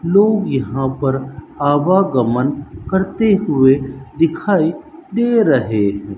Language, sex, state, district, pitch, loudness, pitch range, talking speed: Hindi, male, Rajasthan, Bikaner, 145 Hz, -16 LUFS, 135-195 Hz, 85 wpm